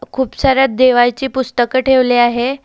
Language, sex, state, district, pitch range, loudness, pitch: Marathi, female, Maharashtra, Solapur, 245-265 Hz, -13 LUFS, 255 Hz